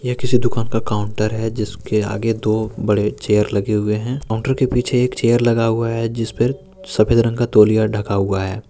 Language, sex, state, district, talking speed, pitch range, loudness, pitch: Hindi, male, Jharkhand, Deoghar, 205 wpm, 105-120 Hz, -18 LUFS, 110 Hz